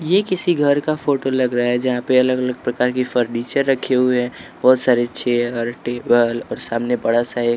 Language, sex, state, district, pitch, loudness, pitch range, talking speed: Hindi, male, Bihar, West Champaran, 125 Hz, -18 LUFS, 120-130 Hz, 205 wpm